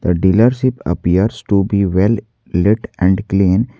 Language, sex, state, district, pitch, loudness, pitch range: English, male, Jharkhand, Garhwa, 100 Hz, -15 LUFS, 95-115 Hz